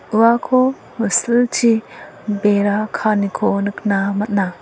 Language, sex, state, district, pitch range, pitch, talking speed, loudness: Garo, female, Meghalaya, West Garo Hills, 200-230 Hz, 215 Hz, 80 wpm, -17 LUFS